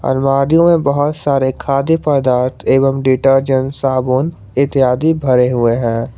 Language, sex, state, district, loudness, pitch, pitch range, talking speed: Hindi, male, Jharkhand, Garhwa, -14 LUFS, 135 Hz, 130-140 Hz, 115 wpm